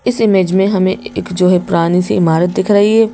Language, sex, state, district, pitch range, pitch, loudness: Hindi, female, Madhya Pradesh, Bhopal, 180-210 Hz, 190 Hz, -13 LUFS